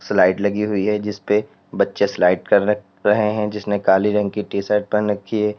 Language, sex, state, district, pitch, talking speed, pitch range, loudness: Hindi, male, Uttar Pradesh, Lalitpur, 105 Hz, 205 wpm, 100-105 Hz, -19 LUFS